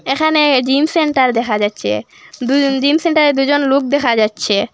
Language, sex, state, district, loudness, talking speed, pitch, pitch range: Bengali, female, Assam, Hailakandi, -14 LUFS, 150 wpm, 270 Hz, 230-290 Hz